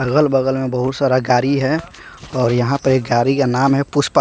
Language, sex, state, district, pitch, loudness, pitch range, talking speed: Hindi, male, Bihar, West Champaran, 135 Hz, -17 LUFS, 125-140 Hz, 215 wpm